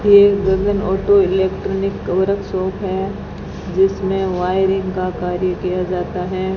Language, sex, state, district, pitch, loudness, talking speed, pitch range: Hindi, female, Rajasthan, Bikaner, 190 Hz, -18 LUFS, 120 wpm, 185-195 Hz